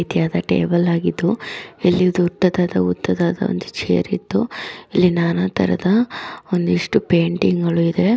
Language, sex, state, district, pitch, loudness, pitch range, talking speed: Kannada, female, Karnataka, Dharwad, 175 Hz, -18 LUFS, 170-185 Hz, 105 wpm